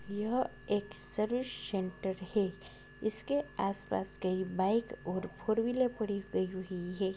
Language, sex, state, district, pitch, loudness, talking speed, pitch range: Hindi, female, Bihar, Lakhisarai, 195 Hz, -35 LUFS, 135 wpm, 185-215 Hz